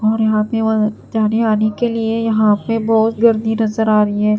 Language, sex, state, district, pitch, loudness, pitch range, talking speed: Hindi, female, Bihar, Katihar, 220 Hz, -16 LUFS, 215-225 Hz, 220 wpm